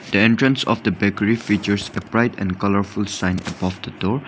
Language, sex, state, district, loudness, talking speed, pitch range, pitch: English, male, Nagaland, Dimapur, -20 LUFS, 195 wpm, 100-115 Hz, 100 Hz